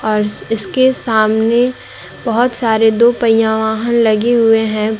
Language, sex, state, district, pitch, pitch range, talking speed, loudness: Hindi, female, Jharkhand, Garhwa, 225 Hz, 220-235 Hz, 130 wpm, -13 LUFS